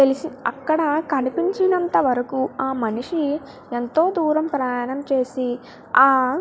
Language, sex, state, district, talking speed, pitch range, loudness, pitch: Telugu, female, Andhra Pradesh, Guntur, 110 wpm, 255-315 Hz, -21 LUFS, 270 Hz